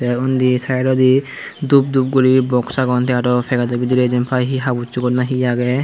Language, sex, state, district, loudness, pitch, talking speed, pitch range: Chakma, male, Tripura, Unakoti, -16 LUFS, 125 Hz, 165 wpm, 125-130 Hz